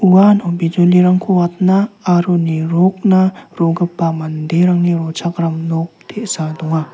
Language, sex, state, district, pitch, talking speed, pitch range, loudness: Garo, male, Meghalaya, South Garo Hills, 175 Hz, 95 wpm, 165-185 Hz, -14 LUFS